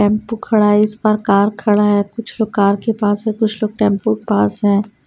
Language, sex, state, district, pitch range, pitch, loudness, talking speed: Hindi, female, Haryana, Rohtak, 205-220 Hz, 210 Hz, -16 LUFS, 235 wpm